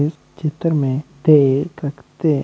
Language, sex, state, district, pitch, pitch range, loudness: Hindi, male, Bihar, Samastipur, 145 Hz, 140-155 Hz, -18 LUFS